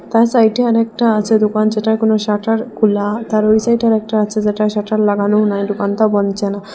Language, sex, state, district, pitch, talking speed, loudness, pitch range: Bengali, female, Assam, Hailakandi, 215 Hz, 185 wpm, -15 LUFS, 210-225 Hz